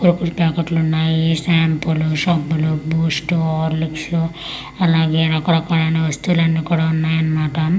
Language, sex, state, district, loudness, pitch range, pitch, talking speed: Telugu, female, Andhra Pradesh, Manyam, -18 LUFS, 160-165 Hz, 160 Hz, 115 wpm